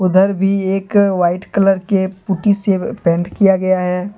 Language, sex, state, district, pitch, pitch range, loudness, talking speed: Hindi, male, Jharkhand, Deoghar, 195 Hz, 185-195 Hz, -15 LUFS, 170 wpm